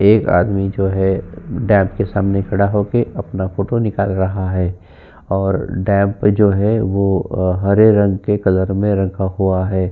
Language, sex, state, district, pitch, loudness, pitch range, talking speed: Hindi, male, Uttar Pradesh, Jyotiba Phule Nagar, 95 Hz, -16 LUFS, 95-105 Hz, 165 wpm